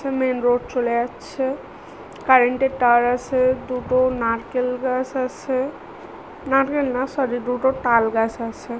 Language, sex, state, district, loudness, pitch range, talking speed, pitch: Bengali, female, West Bengal, Malda, -21 LUFS, 245-265 Hz, 125 wpm, 255 Hz